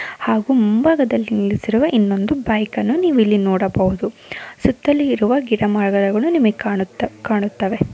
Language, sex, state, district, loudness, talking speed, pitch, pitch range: Kannada, female, Karnataka, Mysore, -17 LUFS, 115 wpm, 215 Hz, 205-260 Hz